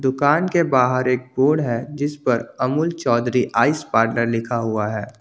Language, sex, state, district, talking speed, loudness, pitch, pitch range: Hindi, male, Jharkhand, Ranchi, 175 wpm, -20 LUFS, 130 Hz, 115-145 Hz